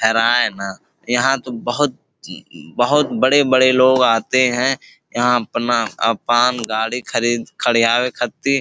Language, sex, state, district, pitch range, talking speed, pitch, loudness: Bhojpuri, male, Uttar Pradesh, Gorakhpur, 115-130 Hz, 105 wpm, 125 Hz, -17 LUFS